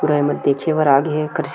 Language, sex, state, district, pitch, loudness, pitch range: Chhattisgarhi, male, Chhattisgarh, Sukma, 150 Hz, -17 LUFS, 140-155 Hz